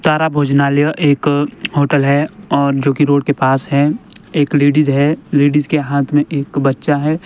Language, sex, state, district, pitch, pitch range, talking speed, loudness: Hindi, male, Himachal Pradesh, Shimla, 145 Hz, 140-150 Hz, 175 wpm, -14 LUFS